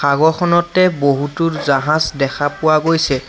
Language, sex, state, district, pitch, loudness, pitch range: Assamese, male, Assam, Sonitpur, 155 Hz, -15 LUFS, 140-165 Hz